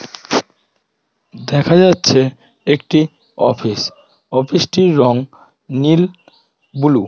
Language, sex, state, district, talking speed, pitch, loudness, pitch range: Bengali, female, West Bengal, Malda, 85 wpm, 145 Hz, -15 LUFS, 130-170 Hz